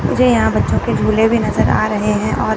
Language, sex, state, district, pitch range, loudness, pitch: Hindi, male, Chandigarh, Chandigarh, 210-230 Hz, -15 LUFS, 220 Hz